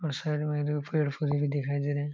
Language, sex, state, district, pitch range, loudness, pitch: Hindi, male, Jharkhand, Jamtara, 145-150 Hz, -30 LUFS, 145 Hz